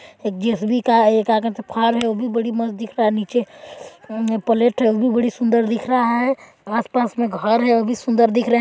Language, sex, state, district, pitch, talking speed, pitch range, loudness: Hindi, female, Chhattisgarh, Balrampur, 230 Hz, 260 wpm, 225-240 Hz, -19 LUFS